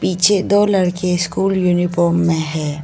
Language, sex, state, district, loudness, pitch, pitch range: Hindi, female, Arunachal Pradesh, Lower Dibang Valley, -16 LUFS, 180 Hz, 170-190 Hz